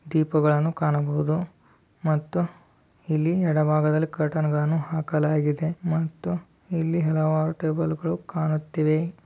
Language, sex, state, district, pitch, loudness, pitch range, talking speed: Kannada, male, Karnataka, Dharwad, 155 Hz, -25 LUFS, 155-165 Hz, 85 wpm